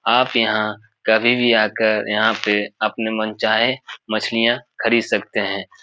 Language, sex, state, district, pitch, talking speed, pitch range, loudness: Hindi, male, Bihar, Supaul, 110 Hz, 135 wpm, 110-115 Hz, -18 LUFS